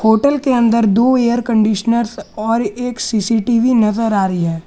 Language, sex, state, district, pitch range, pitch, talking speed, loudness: Hindi, male, Jharkhand, Garhwa, 215-240 Hz, 230 Hz, 165 wpm, -15 LUFS